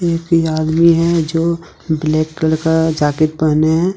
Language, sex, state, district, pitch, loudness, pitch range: Hindi, male, Jharkhand, Deoghar, 160 Hz, -15 LUFS, 155-170 Hz